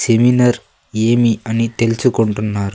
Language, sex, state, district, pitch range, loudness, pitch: Telugu, male, Andhra Pradesh, Sri Satya Sai, 110-120 Hz, -15 LUFS, 115 Hz